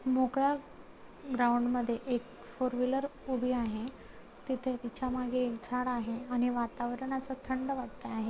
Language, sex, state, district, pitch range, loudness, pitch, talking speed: Marathi, female, Maharashtra, Chandrapur, 240-260 Hz, -34 LUFS, 250 Hz, 135 wpm